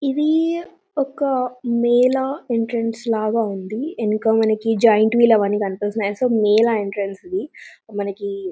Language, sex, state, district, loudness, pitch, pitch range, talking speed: Telugu, female, Telangana, Nalgonda, -19 LUFS, 230 Hz, 210-260 Hz, 135 wpm